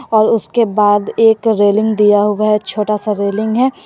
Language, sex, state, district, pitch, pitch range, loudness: Hindi, female, Jharkhand, Garhwa, 215 Hz, 210-225 Hz, -13 LUFS